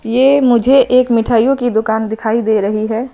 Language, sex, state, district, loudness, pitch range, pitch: Hindi, female, Himachal Pradesh, Shimla, -13 LUFS, 220-255 Hz, 230 Hz